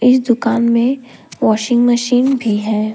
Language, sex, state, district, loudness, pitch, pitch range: Hindi, female, Jharkhand, Deoghar, -14 LUFS, 240 Hz, 220-250 Hz